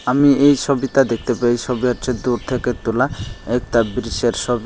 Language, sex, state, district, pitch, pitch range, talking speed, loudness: Bengali, male, Tripura, Unakoti, 125 Hz, 115-130 Hz, 180 wpm, -18 LUFS